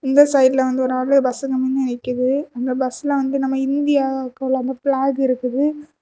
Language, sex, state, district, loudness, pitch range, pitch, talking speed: Tamil, female, Tamil Nadu, Kanyakumari, -19 LUFS, 260-275 Hz, 265 Hz, 160 wpm